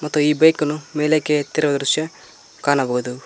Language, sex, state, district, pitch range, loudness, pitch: Kannada, male, Karnataka, Koppal, 140-155 Hz, -19 LUFS, 150 Hz